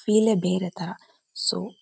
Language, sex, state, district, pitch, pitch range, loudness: Kannada, female, Karnataka, Shimoga, 205 Hz, 180-220 Hz, -25 LUFS